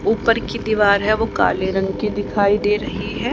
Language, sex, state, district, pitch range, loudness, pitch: Hindi, female, Haryana, Charkhi Dadri, 200-220 Hz, -19 LUFS, 210 Hz